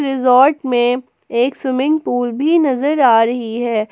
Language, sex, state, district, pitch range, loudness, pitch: Hindi, female, Jharkhand, Palamu, 240-275 Hz, -15 LUFS, 250 Hz